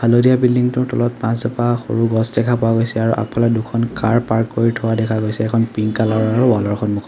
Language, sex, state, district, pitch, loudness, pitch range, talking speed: Assamese, male, Assam, Sonitpur, 115 Hz, -17 LUFS, 110-120 Hz, 230 wpm